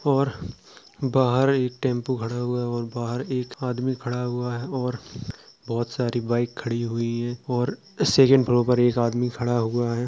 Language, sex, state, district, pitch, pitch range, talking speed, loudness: Hindi, male, Uttar Pradesh, Jalaun, 120 Hz, 120-125 Hz, 175 wpm, -24 LUFS